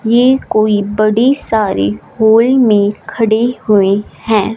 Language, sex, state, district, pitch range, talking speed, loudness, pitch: Hindi, female, Punjab, Fazilka, 205-230 Hz, 120 wpm, -12 LUFS, 220 Hz